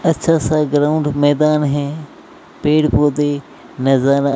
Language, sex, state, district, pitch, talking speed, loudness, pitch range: Hindi, male, Rajasthan, Bikaner, 145 Hz, 110 wpm, -16 LUFS, 140-155 Hz